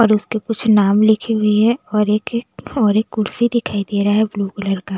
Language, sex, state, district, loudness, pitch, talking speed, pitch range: Hindi, female, Bihar, West Champaran, -17 LUFS, 215 Hz, 240 wpm, 205-225 Hz